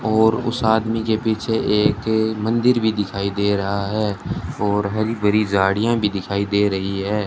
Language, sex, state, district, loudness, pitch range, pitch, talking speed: Hindi, male, Rajasthan, Bikaner, -20 LUFS, 100-110 Hz, 105 Hz, 175 wpm